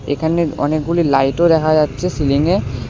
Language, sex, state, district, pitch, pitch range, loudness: Bengali, male, West Bengal, Alipurduar, 155 Hz, 140-170 Hz, -16 LUFS